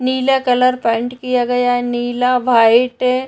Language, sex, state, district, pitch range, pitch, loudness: Hindi, female, Uttar Pradesh, Gorakhpur, 245-255 Hz, 250 Hz, -15 LUFS